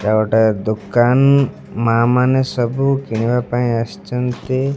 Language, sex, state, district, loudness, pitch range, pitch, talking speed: Odia, male, Odisha, Malkangiri, -16 LUFS, 110-130 Hz, 120 Hz, 115 wpm